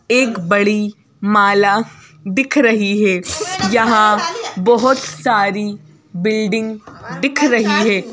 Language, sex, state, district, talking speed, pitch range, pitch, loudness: Hindi, female, Madhya Pradesh, Bhopal, 95 wpm, 200-230 Hz, 210 Hz, -15 LUFS